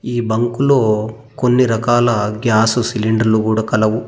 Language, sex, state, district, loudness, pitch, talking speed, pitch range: Telugu, male, Telangana, Mahabubabad, -15 LUFS, 115 Hz, 115 wpm, 110-120 Hz